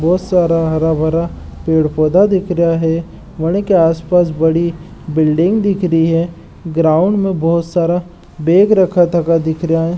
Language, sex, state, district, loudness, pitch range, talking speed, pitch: Marwari, male, Rajasthan, Nagaur, -14 LUFS, 160-180 Hz, 160 wpm, 165 Hz